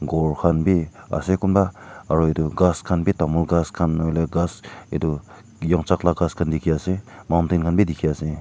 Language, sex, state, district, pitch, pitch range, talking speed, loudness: Nagamese, male, Nagaland, Kohima, 85 Hz, 80-95 Hz, 200 wpm, -21 LUFS